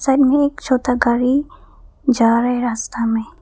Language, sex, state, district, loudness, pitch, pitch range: Hindi, female, Arunachal Pradesh, Papum Pare, -17 LUFS, 250 Hz, 235-270 Hz